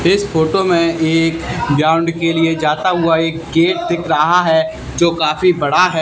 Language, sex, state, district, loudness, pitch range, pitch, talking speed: Hindi, male, Haryana, Charkhi Dadri, -14 LUFS, 160-170 Hz, 165 Hz, 180 wpm